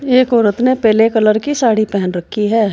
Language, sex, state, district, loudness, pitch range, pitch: Hindi, female, Uttar Pradesh, Saharanpur, -13 LUFS, 210-245 Hz, 220 Hz